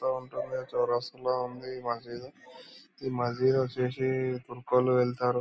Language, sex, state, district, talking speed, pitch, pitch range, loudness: Telugu, male, Andhra Pradesh, Anantapur, 135 wpm, 125 Hz, 125-130 Hz, -30 LUFS